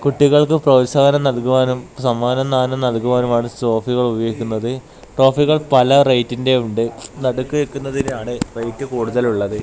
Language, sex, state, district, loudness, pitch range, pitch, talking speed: Malayalam, male, Kerala, Kasaragod, -17 LUFS, 120-135 Hz, 125 Hz, 105 wpm